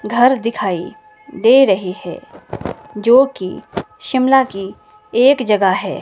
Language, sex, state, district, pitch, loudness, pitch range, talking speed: Hindi, female, Himachal Pradesh, Shimla, 240 Hz, -15 LUFS, 195-270 Hz, 110 wpm